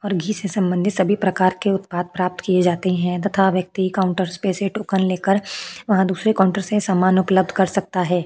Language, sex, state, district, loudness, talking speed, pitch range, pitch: Hindi, female, Maharashtra, Chandrapur, -20 LUFS, 205 wpm, 185-195 Hz, 190 Hz